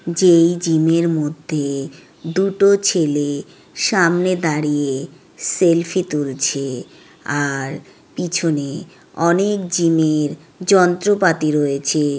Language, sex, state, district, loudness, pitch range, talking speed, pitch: Bengali, female, West Bengal, Jhargram, -18 LUFS, 145-175 Hz, 90 wpm, 160 Hz